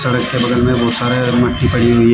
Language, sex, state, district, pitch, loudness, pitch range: Hindi, male, Uttar Pradesh, Shamli, 120 Hz, -14 LUFS, 120-125 Hz